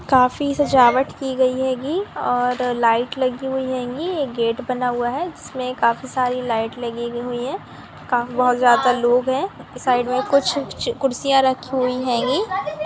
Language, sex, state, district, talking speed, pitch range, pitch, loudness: Hindi, female, Andhra Pradesh, Anantapur, 175 wpm, 245-265 Hz, 255 Hz, -20 LUFS